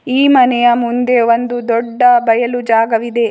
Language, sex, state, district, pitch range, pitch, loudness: Kannada, female, Karnataka, Bidar, 230-245 Hz, 240 Hz, -12 LUFS